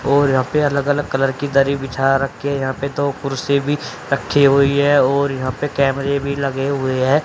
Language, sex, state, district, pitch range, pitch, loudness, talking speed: Hindi, male, Haryana, Rohtak, 135-140 Hz, 140 Hz, -18 LUFS, 225 wpm